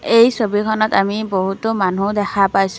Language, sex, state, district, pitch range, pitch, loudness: Assamese, female, Assam, Kamrup Metropolitan, 195-220 Hz, 205 Hz, -17 LUFS